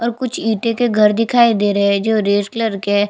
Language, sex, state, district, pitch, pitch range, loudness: Hindi, female, Chhattisgarh, Jashpur, 220 Hz, 205-230 Hz, -16 LUFS